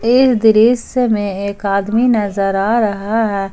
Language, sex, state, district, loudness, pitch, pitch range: Hindi, female, Jharkhand, Ranchi, -14 LUFS, 215 Hz, 200-235 Hz